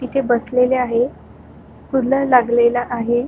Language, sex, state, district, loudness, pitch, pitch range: Marathi, female, Maharashtra, Solapur, -17 LUFS, 250 Hz, 240-260 Hz